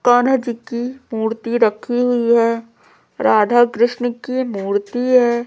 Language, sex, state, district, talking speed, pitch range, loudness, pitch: Hindi, female, Madhya Pradesh, Umaria, 130 wpm, 230-245 Hz, -17 LUFS, 240 Hz